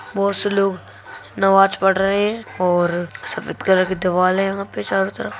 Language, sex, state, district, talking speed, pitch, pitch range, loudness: Hindi, female, Bihar, Purnia, 190 wpm, 195 Hz, 185-195 Hz, -19 LUFS